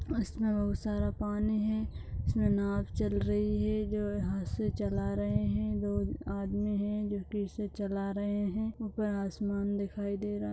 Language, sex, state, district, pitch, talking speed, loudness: Hindi, female, Bihar, Begusarai, 195 Hz, 165 wpm, -33 LUFS